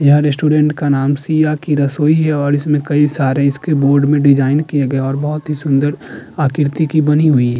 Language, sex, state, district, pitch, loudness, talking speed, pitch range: Hindi, male, Uttar Pradesh, Jalaun, 145 Hz, -14 LUFS, 220 wpm, 140-150 Hz